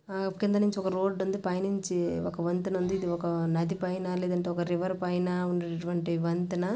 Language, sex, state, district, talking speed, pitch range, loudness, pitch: Telugu, female, Andhra Pradesh, Visakhapatnam, 170 wpm, 175-190 Hz, -30 LUFS, 180 Hz